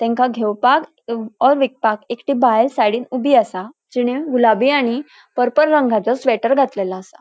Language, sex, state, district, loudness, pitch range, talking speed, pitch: Konkani, female, Goa, North and South Goa, -17 LUFS, 220-265 Hz, 140 wpm, 245 Hz